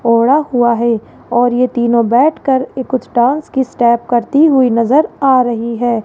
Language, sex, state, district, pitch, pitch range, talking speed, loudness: Hindi, female, Rajasthan, Jaipur, 245 Hz, 235-265 Hz, 190 wpm, -13 LUFS